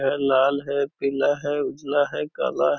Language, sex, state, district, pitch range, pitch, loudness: Hindi, male, Bihar, Purnia, 135-145 Hz, 140 Hz, -23 LUFS